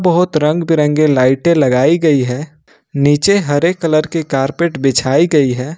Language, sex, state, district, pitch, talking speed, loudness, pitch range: Hindi, male, Jharkhand, Ranchi, 150 Hz, 155 wpm, -13 LUFS, 135-165 Hz